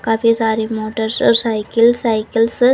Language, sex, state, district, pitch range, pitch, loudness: Hindi, female, Uttar Pradesh, Budaun, 220-230 Hz, 225 Hz, -16 LUFS